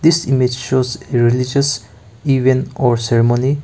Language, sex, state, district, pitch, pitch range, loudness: English, male, Nagaland, Kohima, 125 Hz, 120-135 Hz, -16 LUFS